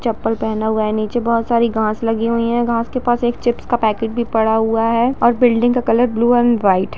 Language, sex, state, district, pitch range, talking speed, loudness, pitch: Hindi, female, Bihar, Darbhanga, 220-240 Hz, 260 wpm, -16 LUFS, 230 Hz